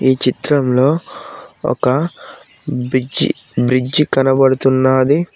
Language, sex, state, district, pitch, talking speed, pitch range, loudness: Telugu, male, Telangana, Mahabubabad, 130 Hz, 65 wpm, 130-145 Hz, -15 LUFS